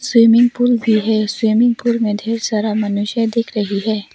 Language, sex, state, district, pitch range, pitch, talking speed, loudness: Hindi, female, Arunachal Pradesh, Papum Pare, 215-235 Hz, 225 Hz, 190 wpm, -16 LUFS